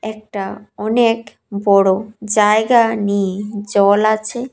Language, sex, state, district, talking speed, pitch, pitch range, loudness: Bengali, female, Tripura, West Tripura, 90 wpm, 215 Hz, 200-220 Hz, -16 LUFS